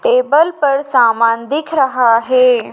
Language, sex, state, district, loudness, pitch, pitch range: Hindi, female, Madhya Pradesh, Dhar, -13 LUFS, 265 Hz, 235-305 Hz